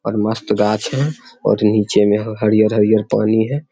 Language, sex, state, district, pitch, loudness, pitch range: Hindi, male, Bihar, Begusarai, 110 Hz, -16 LUFS, 105-110 Hz